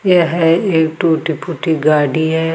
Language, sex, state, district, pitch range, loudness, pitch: Hindi, female, Rajasthan, Jaipur, 160-170 Hz, -14 LUFS, 160 Hz